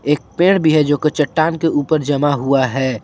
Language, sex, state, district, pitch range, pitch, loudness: Hindi, male, Jharkhand, Ranchi, 140-155 Hz, 145 Hz, -16 LUFS